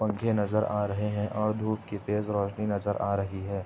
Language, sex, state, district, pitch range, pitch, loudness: Hindi, male, Uttar Pradesh, Etah, 100-105 Hz, 105 Hz, -29 LUFS